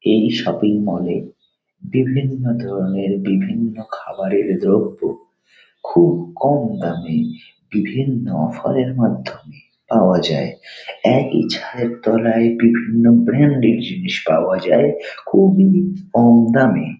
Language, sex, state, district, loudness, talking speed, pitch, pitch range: Bengali, male, West Bengal, Paschim Medinipur, -17 LUFS, 100 wpm, 115 Hz, 105-135 Hz